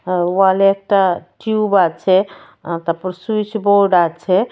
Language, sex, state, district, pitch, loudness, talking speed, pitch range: Bengali, female, Tripura, West Tripura, 190 Hz, -16 LUFS, 135 wpm, 180-200 Hz